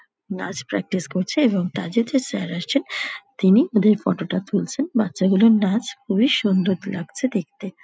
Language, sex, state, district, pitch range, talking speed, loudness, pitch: Bengali, female, West Bengal, Dakshin Dinajpur, 185-235 Hz, 145 wpm, -21 LUFS, 200 Hz